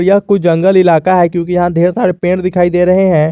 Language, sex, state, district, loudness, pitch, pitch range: Hindi, male, Jharkhand, Garhwa, -11 LUFS, 180 Hz, 175-185 Hz